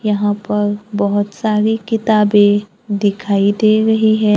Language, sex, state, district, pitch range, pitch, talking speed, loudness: Hindi, female, Maharashtra, Gondia, 205-215 Hz, 210 Hz, 125 wpm, -15 LUFS